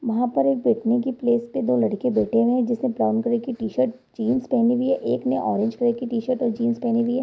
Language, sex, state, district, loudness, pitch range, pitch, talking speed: Hindi, female, Bihar, East Champaran, -22 LUFS, 230-250 Hz, 235 Hz, 250 wpm